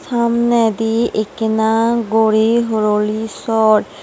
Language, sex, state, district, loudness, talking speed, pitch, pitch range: Chakma, female, Tripura, West Tripura, -15 LUFS, 75 wpm, 225 Hz, 220-235 Hz